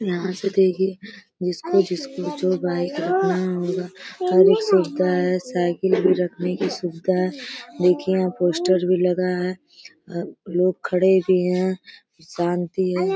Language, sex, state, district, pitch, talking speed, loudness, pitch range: Hindi, female, Uttar Pradesh, Deoria, 185 Hz, 145 wpm, -21 LUFS, 180-190 Hz